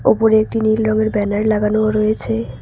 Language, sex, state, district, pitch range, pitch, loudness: Bengali, female, West Bengal, Cooch Behar, 210-220 Hz, 215 Hz, -16 LUFS